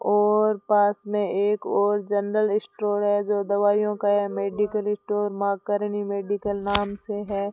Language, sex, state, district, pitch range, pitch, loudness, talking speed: Hindi, female, Rajasthan, Bikaner, 205-210 Hz, 205 Hz, -24 LUFS, 160 wpm